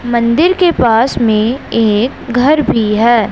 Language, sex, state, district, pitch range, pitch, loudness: Hindi, male, Punjab, Pathankot, 225-265 Hz, 235 Hz, -12 LUFS